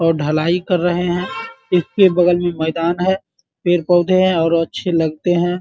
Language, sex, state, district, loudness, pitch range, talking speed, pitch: Hindi, male, Bihar, Muzaffarpur, -17 LUFS, 165-180 Hz, 190 wpm, 175 Hz